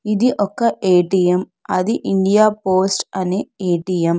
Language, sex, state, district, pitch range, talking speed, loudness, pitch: Telugu, female, Telangana, Hyderabad, 180-210 Hz, 130 wpm, -17 LUFS, 190 Hz